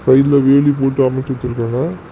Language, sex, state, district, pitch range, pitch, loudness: Tamil, male, Tamil Nadu, Namakkal, 130-140 Hz, 135 Hz, -15 LUFS